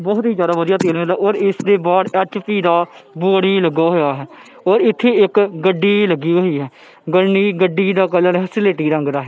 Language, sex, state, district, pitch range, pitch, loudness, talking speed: Punjabi, male, Punjab, Kapurthala, 170-200 Hz, 185 Hz, -15 LUFS, 185 wpm